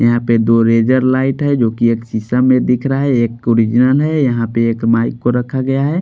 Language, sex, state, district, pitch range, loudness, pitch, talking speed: Hindi, male, Bihar, Patna, 115-130 Hz, -14 LUFS, 120 Hz, 240 wpm